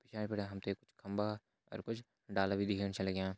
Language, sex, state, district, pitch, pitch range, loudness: Hindi, male, Uttarakhand, Tehri Garhwal, 100 Hz, 95-105 Hz, -40 LUFS